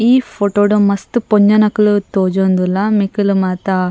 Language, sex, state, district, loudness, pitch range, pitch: Tulu, female, Karnataka, Dakshina Kannada, -14 LUFS, 190-210 Hz, 205 Hz